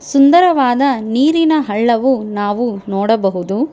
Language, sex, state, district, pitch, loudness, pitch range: Kannada, female, Karnataka, Bangalore, 245 Hz, -14 LUFS, 205-280 Hz